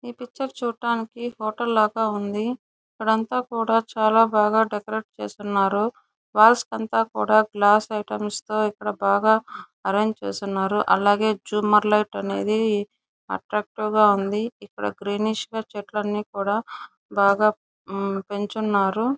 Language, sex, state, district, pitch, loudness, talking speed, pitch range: Telugu, female, Andhra Pradesh, Chittoor, 210 Hz, -23 LUFS, 110 wpm, 205-220 Hz